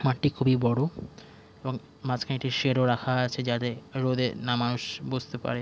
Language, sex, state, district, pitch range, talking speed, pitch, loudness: Bengali, male, West Bengal, Jhargram, 120-130 Hz, 170 wpm, 125 Hz, -28 LUFS